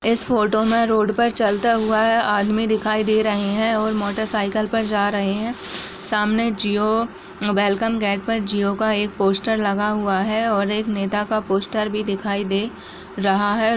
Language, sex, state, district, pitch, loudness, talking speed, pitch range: Hindi, female, Uttar Pradesh, Jyotiba Phule Nagar, 210 Hz, -20 LUFS, 185 wpm, 200-220 Hz